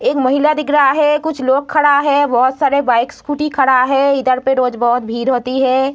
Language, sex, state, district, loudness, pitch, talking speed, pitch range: Hindi, female, Bihar, Gaya, -14 LUFS, 270 Hz, 220 wpm, 255-290 Hz